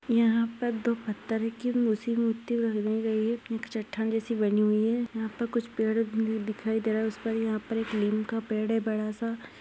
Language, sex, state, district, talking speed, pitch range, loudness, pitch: Hindi, female, Maharashtra, Chandrapur, 225 wpm, 220-230 Hz, -29 LUFS, 225 Hz